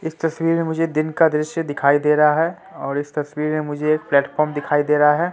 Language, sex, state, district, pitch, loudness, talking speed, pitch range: Hindi, male, Bihar, Katihar, 150 Hz, -19 LUFS, 245 wpm, 145-160 Hz